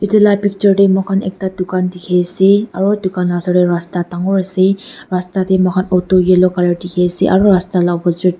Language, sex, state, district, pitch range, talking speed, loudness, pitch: Nagamese, female, Nagaland, Dimapur, 180-195 Hz, 215 wpm, -14 LUFS, 185 Hz